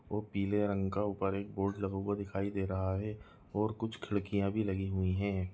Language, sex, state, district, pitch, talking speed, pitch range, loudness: Hindi, male, Chhattisgarh, Balrampur, 100 Hz, 215 wpm, 95-105 Hz, -35 LUFS